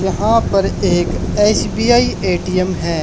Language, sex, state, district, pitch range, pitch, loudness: Hindi, male, Haryana, Charkhi Dadri, 180-215 Hz, 185 Hz, -15 LUFS